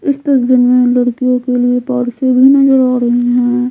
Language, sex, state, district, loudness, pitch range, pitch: Hindi, female, Bihar, Patna, -11 LUFS, 245-260 Hz, 250 Hz